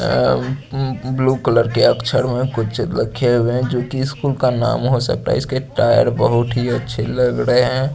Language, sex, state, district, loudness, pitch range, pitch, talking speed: Hindi, male, Chandigarh, Chandigarh, -17 LUFS, 120-130 Hz, 125 Hz, 195 wpm